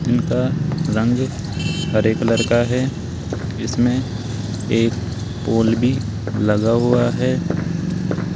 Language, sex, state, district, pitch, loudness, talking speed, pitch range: Hindi, male, Rajasthan, Jaipur, 115 Hz, -19 LUFS, 95 wpm, 105-120 Hz